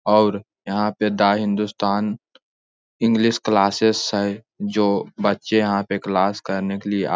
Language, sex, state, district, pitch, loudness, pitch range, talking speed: Hindi, male, Bihar, Jamui, 100 Hz, -20 LUFS, 100-105 Hz, 150 wpm